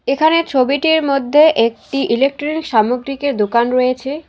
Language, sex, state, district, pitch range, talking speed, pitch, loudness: Bengali, female, West Bengal, Alipurduar, 250-300 Hz, 110 wpm, 275 Hz, -15 LUFS